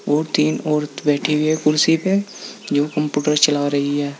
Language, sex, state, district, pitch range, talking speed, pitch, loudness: Hindi, male, Uttar Pradesh, Saharanpur, 145-155 Hz, 185 wpm, 150 Hz, -18 LUFS